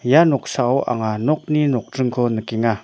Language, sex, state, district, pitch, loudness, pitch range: Garo, male, Meghalaya, North Garo Hills, 125 Hz, -19 LUFS, 115-140 Hz